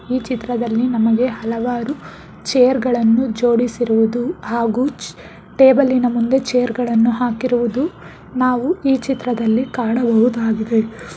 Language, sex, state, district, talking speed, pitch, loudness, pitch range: Kannada, female, Karnataka, Bangalore, 100 wpm, 245 Hz, -17 LUFS, 230-255 Hz